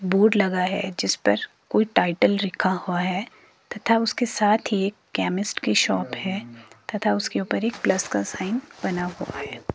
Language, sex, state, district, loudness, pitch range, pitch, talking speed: Hindi, female, Himachal Pradesh, Shimla, -24 LUFS, 185-215 Hz, 195 Hz, 180 wpm